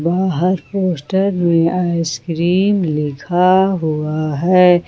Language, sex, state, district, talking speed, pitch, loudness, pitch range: Hindi, female, Jharkhand, Ranchi, 100 wpm, 175 Hz, -16 LUFS, 160-185 Hz